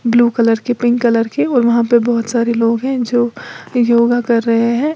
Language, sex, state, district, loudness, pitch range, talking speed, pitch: Hindi, female, Uttar Pradesh, Lalitpur, -14 LUFS, 230-245 Hz, 215 wpm, 235 Hz